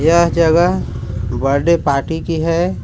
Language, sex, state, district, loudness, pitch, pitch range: Hindi, male, Jharkhand, Palamu, -16 LUFS, 165 Hz, 140-170 Hz